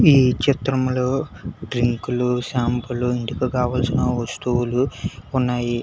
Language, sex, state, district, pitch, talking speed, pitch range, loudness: Telugu, male, Telangana, Hyderabad, 125 Hz, 80 wpm, 120-130 Hz, -21 LUFS